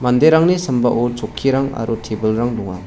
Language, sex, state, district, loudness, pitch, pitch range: Garo, male, Meghalaya, West Garo Hills, -17 LUFS, 120 Hz, 115-135 Hz